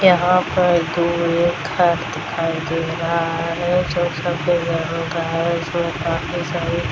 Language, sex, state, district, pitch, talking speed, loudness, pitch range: Hindi, female, Bihar, Darbhanga, 170 Hz, 155 wpm, -19 LUFS, 165-175 Hz